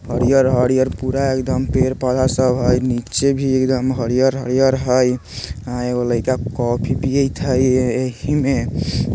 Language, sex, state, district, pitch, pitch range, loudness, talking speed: Bajjika, male, Bihar, Vaishali, 130 Hz, 125-130 Hz, -18 LUFS, 125 wpm